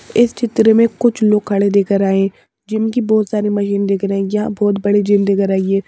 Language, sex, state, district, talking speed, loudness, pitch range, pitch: Hindi, female, Madhya Pradesh, Bhopal, 225 wpm, -15 LUFS, 200-220 Hz, 205 Hz